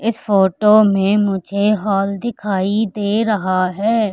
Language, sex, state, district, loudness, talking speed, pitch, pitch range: Hindi, female, Madhya Pradesh, Katni, -16 LUFS, 130 wpm, 205 Hz, 195-215 Hz